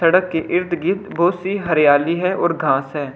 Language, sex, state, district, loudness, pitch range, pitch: Hindi, male, Delhi, New Delhi, -18 LUFS, 155-180 Hz, 170 Hz